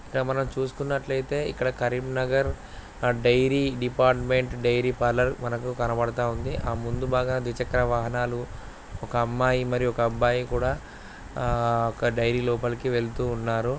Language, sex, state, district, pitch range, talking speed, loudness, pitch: Telugu, male, Andhra Pradesh, Guntur, 120-130 Hz, 115 wpm, -26 LUFS, 125 Hz